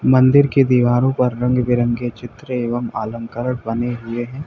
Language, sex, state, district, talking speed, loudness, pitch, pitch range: Hindi, male, Uttar Pradesh, Lalitpur, 175 wpm, -18 LUFS, 120 Hz, 120-125 Hz